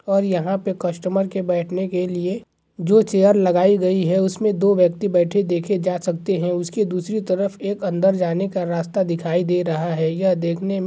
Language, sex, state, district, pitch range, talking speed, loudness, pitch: Hindi, male, Bihar, Gaya, 175-195 Hz, 205 wpm, -20 LUFS, 185 Hz